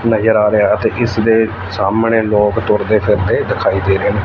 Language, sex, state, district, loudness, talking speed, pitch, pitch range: Punjabi, male, Punjab, Fazilka, -14 LUFS, 200 wpm, 105 Hz, 105-110 Hz